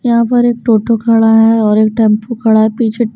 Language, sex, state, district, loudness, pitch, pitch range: Hindi, female, Bihar, Patna, -11 LUFS, 225 Hz, 220-235 Hz